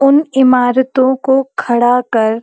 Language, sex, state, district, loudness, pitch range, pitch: Hindi, female, Uttarakhand, Uttarkashi, -12 LUFS, 245-265 Hz, 260 Hz